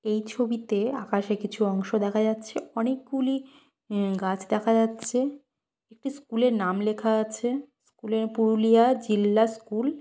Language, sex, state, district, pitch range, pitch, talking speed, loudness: Bengali, female, West Bengal, Purulia, 215-250 Hz, 225 Hz, 145 wpm, -26 LUFS